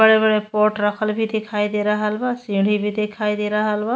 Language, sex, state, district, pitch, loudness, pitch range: Bhojpuri, female, Uttar Pradesh, Ghazipur, 210 Hz, -20 LUFS, 210-220 Hz